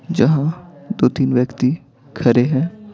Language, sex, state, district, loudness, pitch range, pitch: Hindi, male, Bihar, Patna, -17 LUFS, 130-175 Hz, 145 Hz